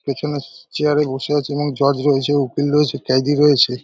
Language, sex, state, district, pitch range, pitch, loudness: Bengali, male, West Bengal, North 24 Parganas, 140-150 Hz, 145 Hz, -18 LUFS